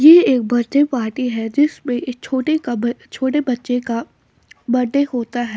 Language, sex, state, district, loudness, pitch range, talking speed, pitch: Hindi, female, Bihar, West Champaran, -18 LUFS, 240-280 Hz, 150 wpm, 250 Hz